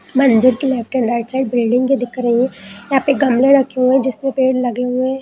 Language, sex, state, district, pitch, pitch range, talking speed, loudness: Hindi, female, Bihar, Gaya, 255 Hz, 245-265 Hz, 240 wpm, -15 LUFS